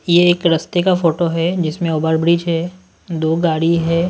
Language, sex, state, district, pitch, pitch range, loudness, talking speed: Hindi, male, Delhi, New Delhi, 170 Hz, 165-175 Hz, -16 LUFS, 190 wpm